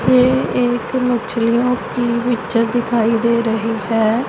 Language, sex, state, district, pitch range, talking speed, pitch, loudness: Hindi, female, Punjab, Pathankot, 230-245 Hz, 125 wpm, 235 Hz, -17 LUFS